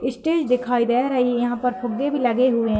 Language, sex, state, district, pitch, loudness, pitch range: Hindi, female, Uttar Pradesh, Hamirpur, 250 Hz, -21 LUFS, 240-255 Hz